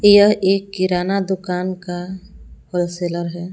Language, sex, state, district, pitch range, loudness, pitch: Hindi, female, Jharkhand, Palamu, 175-195 Hz, -19 LUFS, 185 Hz